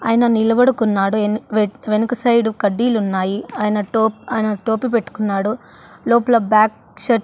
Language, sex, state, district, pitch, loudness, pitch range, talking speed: Telugu, female, Andhra Pradesh, Annamaya, 220 Hz, -17 LUFS, 210-235 Hz, 125 wpm